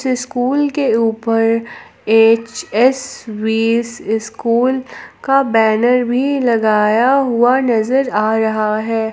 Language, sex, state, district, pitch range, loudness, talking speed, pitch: Hindi, female, Jharkhand, Palamu, 220-255 Hz, -15 LUFS, 110 wpm, 230 Hz